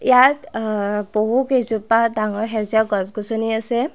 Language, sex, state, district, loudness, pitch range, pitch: Assamese, female, Assam, Kamrup Metropolitan, -18 LUFS, 215-235 Hz, 220 Hz